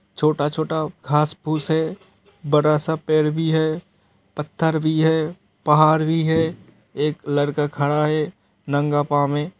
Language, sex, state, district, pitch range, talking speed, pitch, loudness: Hindi, male, Uttar Pradesh, Hamirpur, 150-160 Hz, 135 wpm, 155 Hz, -20 LUFS